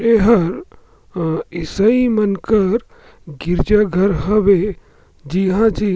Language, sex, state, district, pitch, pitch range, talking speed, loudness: Surgujia, male, Chhattisgarh, Sarguja, 200 Hz, 175-220 Hz, 90 wpm, -16 LUFS